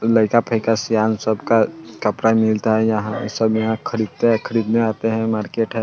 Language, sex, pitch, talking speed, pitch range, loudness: Bajjika, male, 110 Hz, 165 wpm, 110-115 Hz, -19 LUFS